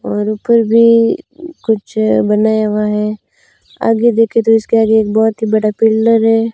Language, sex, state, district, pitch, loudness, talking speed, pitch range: Hindi, female, Rajasthan, Bikaner, 220 Hz, -12 LUFS, 175 wpm, 215-230 Hz